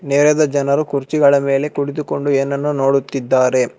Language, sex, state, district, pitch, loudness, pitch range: Kannada, male, Karnataka, Bangalore, 140 Hz, -16 LUFS, 135-145 Hz